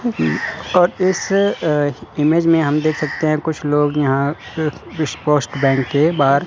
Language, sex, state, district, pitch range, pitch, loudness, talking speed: Hindi, male, Chandigarh, Chandigarh, 145-165 Hz, 155 Hz, -17 LUFS, 165 wpm